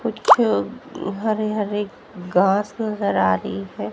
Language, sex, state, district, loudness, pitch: Hindi, female, Haryana, Jhajjar, -21 LUFS, 195 Hz